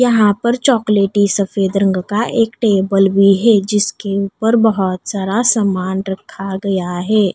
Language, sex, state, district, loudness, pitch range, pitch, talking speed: Hindi, female, Odisha, Nuapada, -15 LUFS, 195-220 Hz, 200 Hz, 145 wpm